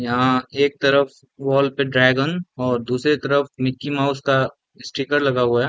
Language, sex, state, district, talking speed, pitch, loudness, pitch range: Hindi, male, Chhattisgarh, Raigarh, 150 wpm, 135 Hz, -20 LUFS, 130-140 Hz